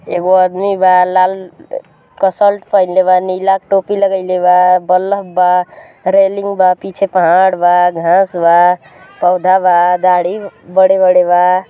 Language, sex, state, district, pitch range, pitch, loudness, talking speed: Bhojpuri, female, Uttar Pradesh, Gorakhpur, 180-195 Hz, 185 Hz, -11 LUFS, 115 wpm